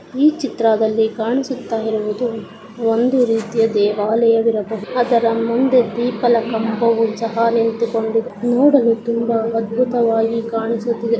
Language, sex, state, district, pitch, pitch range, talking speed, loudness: Kannada, female, Karnataka, Dakshina Kannada, 230 Hz, 225-240 Hz, 85 wpm, -17 LUFS